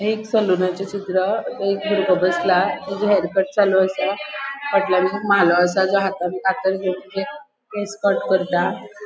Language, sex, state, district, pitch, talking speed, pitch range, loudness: Konkani, female, Goa, North and South Goa, 195 Hz, 145 wpm, 185-205 Hz, -20 LUFS